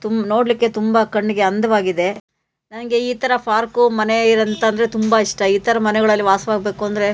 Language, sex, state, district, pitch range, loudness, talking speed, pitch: Kannada, female, Karnataka, Shimoga, 210-230 Hz, -17 LUFS, 150 wpm, 220 Hz